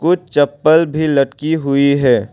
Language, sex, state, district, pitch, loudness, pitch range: Hindi, male, Arunachal Pradesh, Longding, 145 Hz, -14 LUFS, 140-160 Hz